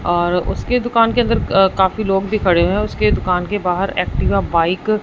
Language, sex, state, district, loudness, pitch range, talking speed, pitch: Hindi, female, Punjab, Fazilka, -16 LUFS, 180-215 Hz, 205 wpm, 195 Hz